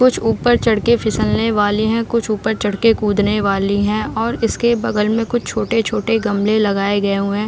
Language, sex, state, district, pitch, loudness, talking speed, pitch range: Hindi, female, Bihar, Jahanabad, 215 Hz, -17 LUFS, 210 wpm, 205-230 Hz